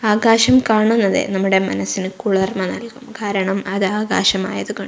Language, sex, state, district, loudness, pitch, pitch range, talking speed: Malayalam, female, Kerala, Kozhikode, -17 LUFS, 200 Hz, 190-225 Hz, 125 wpm